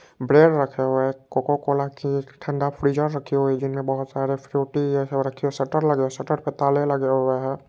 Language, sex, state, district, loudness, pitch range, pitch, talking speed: Hindi, male, Bihar, Purnia, -23 LUFS, 135-145 Hz, 140 Hz, 235 wpm